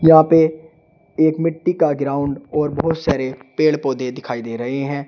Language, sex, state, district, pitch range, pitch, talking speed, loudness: Hindi, male, Uttar Pradesh, Shamli, 135-160 Hz, 150 Hz, 175 wpm, -18 LUFS